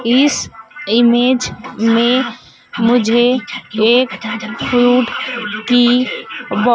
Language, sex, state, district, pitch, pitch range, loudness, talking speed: Hindi, female, Madhya Pradesh, Dhar, 240 Hz, 230-250 Hz, -14 LUFS, 60 wpm